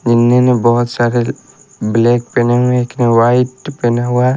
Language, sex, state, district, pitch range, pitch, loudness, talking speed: Hindi, male, Haryana, Rohtak, 120-125 Hz, 120 Hz, -13 LUFS, 190 wpm